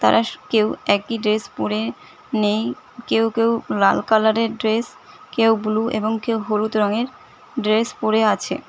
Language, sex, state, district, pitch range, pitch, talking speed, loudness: Bengali, female, West Bengal, Cooch Behar, 215-230 Hz, 220 Hz, 145 wpm, -20 LUFS